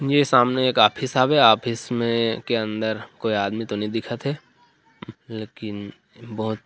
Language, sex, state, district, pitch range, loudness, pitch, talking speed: Chhattisgarhi, male, Chhattisgarh, Rajnandgaon, 110-125 Hz, -21 LUFS, 115 Hz, 155 wpm